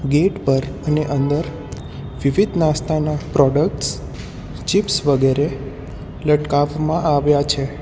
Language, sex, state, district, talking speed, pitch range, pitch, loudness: Gujarati, male, Gujarat, Valsad, 90 wpm, 140-155 Hz, 145 Hz, -18 LUFS